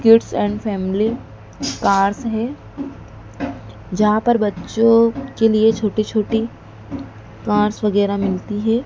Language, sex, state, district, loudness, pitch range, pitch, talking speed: Hindi, female, Madhya Pradesh, Dhar, -18 LUFS, 210-230 Hz, 215 Hz, 110 wpm